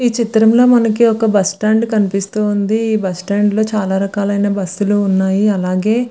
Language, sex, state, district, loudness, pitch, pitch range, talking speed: Telugu, female, Andhra Pradesh, Visakhapatnam, -14 LUFS, 205 Hz, 195-220 Hz, 175 wpm